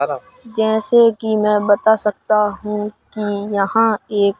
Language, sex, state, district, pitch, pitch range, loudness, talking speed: Hindi, male, Madhya Pradesh, Bhopal, 210 Hz, 205-220 Hz, -17 LUFS, 125 wpm